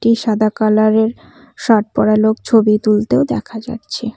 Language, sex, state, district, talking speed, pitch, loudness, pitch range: Bengali, female, West Bengal, Cooch Behar, 160 wpm, 220 Hz, -14 LUFS, 215-230 Hz